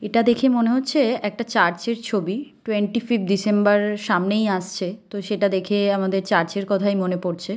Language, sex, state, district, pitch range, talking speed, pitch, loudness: Bengali, female, West Bengal, Kolkata, 195-230 Hz, 175 wpm, 205 Hz, -21 LUFS